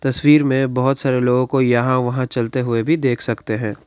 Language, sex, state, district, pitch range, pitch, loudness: Hindi, male, Karnataka, Bangalore, 120-135 Hz, 130 Hz, -17 LUFS